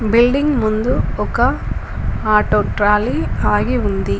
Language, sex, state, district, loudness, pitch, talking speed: Telugu, female, Telangana, Komaram Bheem, -17 LUFS, 210 Hz, 100 wpm